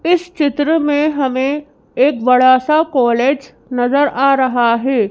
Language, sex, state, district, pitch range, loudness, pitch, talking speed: Hindi, male, Madhya Pradesh, Bhopal, 255-295 Hz, -14 LUFS, 270 Hz, 140 wpm